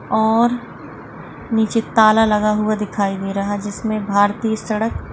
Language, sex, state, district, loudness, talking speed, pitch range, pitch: Hindi, female, Maharashtra, Pune, -18 LUFS, 140 wpm, 205-220 Hz, 215 Hz